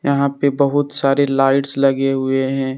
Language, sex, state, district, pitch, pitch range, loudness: Hindi, male, Jharkhand, Deoghar, 135 Hz, 135-140 Hz, -17 LUFS